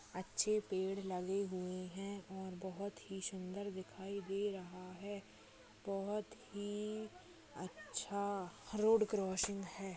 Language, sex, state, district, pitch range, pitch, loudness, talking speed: Hindi, female, Uttar Pradesh, Jyotiba Phule Nagar, 190-205 Hz, 195 Hz, -42 LUFS, 115 wpm